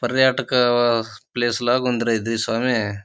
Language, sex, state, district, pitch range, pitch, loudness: Telugu, male, Andhra Pradesh, Chittoor, 115-125 Hz, 120 Hz, -20 LUFS